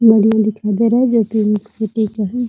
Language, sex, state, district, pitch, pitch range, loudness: Hindi, female, Bihar, Muzaffarpur, 220 Hz, 215-230 Hz, -15 LUFS